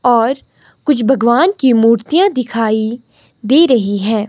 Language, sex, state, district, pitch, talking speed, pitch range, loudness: Hindi, female, Himachal Pradesh, Shimla, 240 Hz, 125 wpm, 225-265 Hz, -13 LUFS